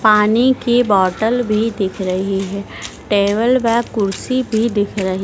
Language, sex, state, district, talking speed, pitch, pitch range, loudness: Hindi, female, Madhya Pradesh, Dhar, 150 wpm, 210 Hz, 195-235 Hz, -16 LUFS